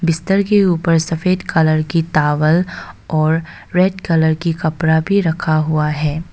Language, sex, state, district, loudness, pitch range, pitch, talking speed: Hindi, female, Arunachal Pradesh, Papum Pare, -16 LUFS, 155-180 Hz, 165 Hz, 150 wpm